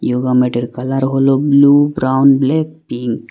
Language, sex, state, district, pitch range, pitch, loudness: Bengali, male, Assam, Hailakandi, 125-140 Hz, 135 Hz, -14 LUFS